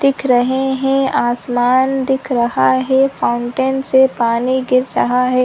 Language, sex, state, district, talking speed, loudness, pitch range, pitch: Hindi, female, Chhattisgarh, Sarguja, 145 wpm, -15 LUFS, 245-265 Hz, 260 Hz